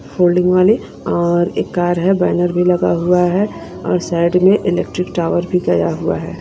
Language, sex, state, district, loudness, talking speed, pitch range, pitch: Hindi, female, Punjab, Kapurthala, -15 LUFS, 185 wpm, 175-180 Hz, 180 Hz